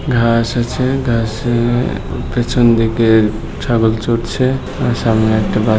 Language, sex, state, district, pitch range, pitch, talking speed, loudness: Bengali, male, West Bengal, Jhargram, 110-120 Hz, 115 Hz, 95 wpm, -15 LUFS